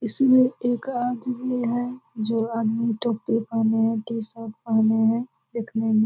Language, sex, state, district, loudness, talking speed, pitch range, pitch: Hindi, female, Bihar, Purnia, -23 LUFS, 150 wpm, 225-245 Hz, 230 Hz